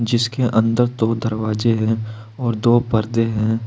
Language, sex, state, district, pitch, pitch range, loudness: Hindi, male, Uttar Pradesh, Saharanpur, 115 Hz, 110-120 Hz, -19 LUFS